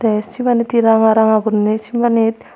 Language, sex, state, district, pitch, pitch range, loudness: Chakma, female, Tripura, Unakoti, 225 Hz, 220-235 Hz, -14 LUFS